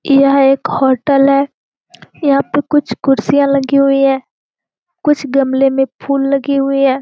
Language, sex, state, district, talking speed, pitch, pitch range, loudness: Hindi, female, Bihar, Jamui, 155 wpm, 275 Hz, 270-280 Hz, -13 LUFS